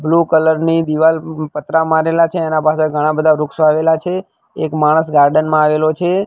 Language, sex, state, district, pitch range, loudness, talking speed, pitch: Gujarati, male, Gujarat, Gandhinagar, 155-160 Hz, -14 LUFS, 190 wpm, 155 Hz